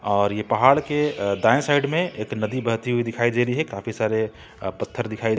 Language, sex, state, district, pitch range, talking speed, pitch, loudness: Hindi, male, Jharkhand, Ranchi, 110-130 Hz, 210 wpm, 115 Hz, -22 LUFS